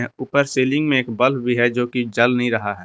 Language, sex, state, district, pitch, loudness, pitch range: Hindi, male, Jharkhand, Garhwa, 125 Hz, -19 LUFS, 120-130 Hz